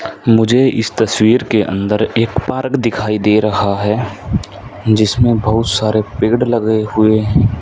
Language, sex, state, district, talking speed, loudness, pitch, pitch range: Hindi, male, Haryana, Rohtak, 135 wpm, -14 LUFS, 110 Hz, 105-115 Hz